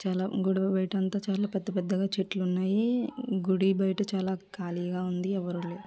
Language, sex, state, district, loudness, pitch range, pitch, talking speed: Telugu, female, Andhra Pradesh, Krishna, -30 LUFS, 185-195 Hz, 190 Hz, 145 wpm